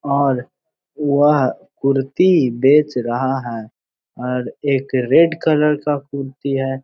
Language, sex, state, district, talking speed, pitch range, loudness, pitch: Hindi, male, Bihar, Jahanabad, 115 wpm, 130-150 Hz, -17 LUFS, 135 Hz